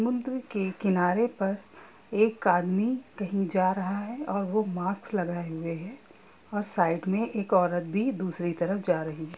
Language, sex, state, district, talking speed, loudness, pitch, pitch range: Hindi, female, Bihar, Gopalganj, 175 wpm, -28 LUFS, 195 Hz, 180-215 Hz